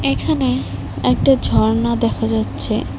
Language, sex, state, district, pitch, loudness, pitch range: Bengali, female, West Bengal, Cooch Behar, 110 Hz, -17 LUFS, 100-125 Hz